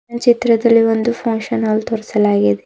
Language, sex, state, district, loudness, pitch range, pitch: Kannada, female, Karnataka, Bidar, -15 LUFS, 215-235 Hz, 230 Hz